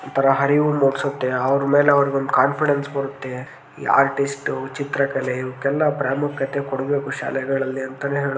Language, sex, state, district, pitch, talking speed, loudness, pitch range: Kannada, male, Karnataka, Gulbarga, 140 Hz, 135 wpm, -21 LUFS, 135-140 Hz